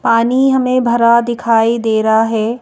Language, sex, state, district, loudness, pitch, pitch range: Hindi, female, Madhya Pradesh, Bhopal, -13 LUFS, 235 Hz, 225-240 Hz